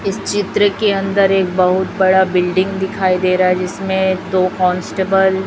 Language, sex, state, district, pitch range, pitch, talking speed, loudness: Hindi, female, Chhattisgarh, Raipur, 185-195 Hz, 190 Hz, 175 wpm, -15 LUFS